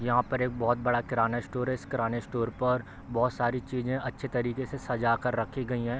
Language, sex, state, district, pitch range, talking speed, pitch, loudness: Hindi, male, Bihar, East Champaran, 120-125 Hz, 230 wpm, 125 Hz, -30 LUFS